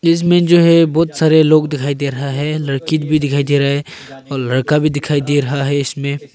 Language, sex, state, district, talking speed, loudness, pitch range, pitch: Hindi, male, Arunachal Pradesh, Longding, 225 wpm, -14 LUFS, 140-155 Hz, 145 Hz